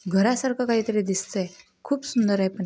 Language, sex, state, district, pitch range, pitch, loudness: Marathi, female, Maharashtra, Pune, 190-245 Hz, 210 Hz, -24 LUFS